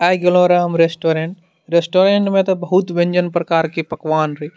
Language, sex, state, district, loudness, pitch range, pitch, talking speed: Maithili, male, Bihar, Madhepura, -16 LUFS, 165-180 Hz, 175 Hz, 185 wpm